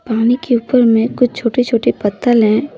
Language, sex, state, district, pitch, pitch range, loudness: Hindi, female, Jharkhand, Deoghar, 235 Hz, 225-250 Hz, -14 LUFS